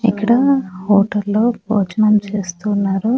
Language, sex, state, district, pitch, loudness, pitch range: Telugu, female, Andhra Pradesh, Annamaya, 210 Hz, -16 LUFS, 200-225 Hz